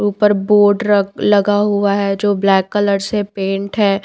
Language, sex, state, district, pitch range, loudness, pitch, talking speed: Hindi, female, Himachal Pradesh, Shimla, 195-205 Hz, -15 LUFS, 205 Hz, 190 wpm